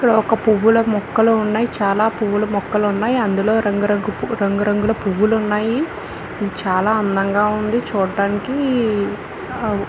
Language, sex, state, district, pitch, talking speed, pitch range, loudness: Telugu, female, Telangana, Nalgonda, 210 Hz, 110 wpm, 205-225 Hz, -18 LUFS